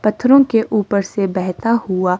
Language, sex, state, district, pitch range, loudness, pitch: Hindi, female, Himachal Pradesh, Shimla, 185-230 Hz, -16 LUFS, 205 Hz